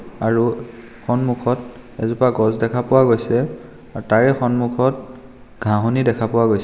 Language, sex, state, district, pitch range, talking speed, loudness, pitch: Assamese, male, Assam, Kamrup Metropolitan, 115-125 Hz, 125 wpm, -18 LUFS, 120 Hz